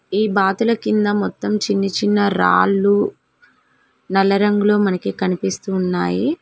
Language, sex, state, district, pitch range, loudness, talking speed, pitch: Telugu, female, Telangana, Mahabubabad, 190-205 Hz, -18 LUFS, 95 wpm, 200 Hz